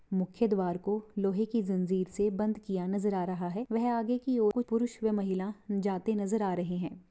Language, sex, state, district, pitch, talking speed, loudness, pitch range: Hindi, female, Chhattisgarh, Rajnandgaon, 205 Hz, 220 wpm, -32 LUFS, 190-220 Hz